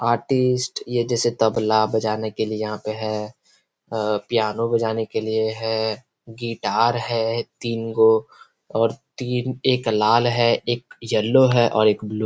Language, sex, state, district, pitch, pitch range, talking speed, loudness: Hindi, male, Bihar, Gopalganj, 115 Hz, 110-120 Hz, 155 wpm, -21 LUFS